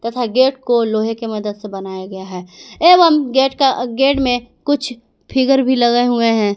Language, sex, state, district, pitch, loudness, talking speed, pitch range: Hindi, female, Jharkhand, Garhwa, 245 Hz, -15 LUFS, 175 wpm, 220-265 Hz